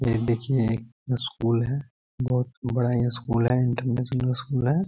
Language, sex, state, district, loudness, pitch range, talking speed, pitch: Hindi, male, Chhattisgarh, Korba, -26 LUFS, 120-125 Hz, 170 wpm, 125 Hz